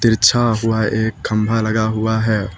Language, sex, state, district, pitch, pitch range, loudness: Hindi, male, Uttar Pradesh, Lucknow, 110 Hz, 110-115 Hz, -17 LUFS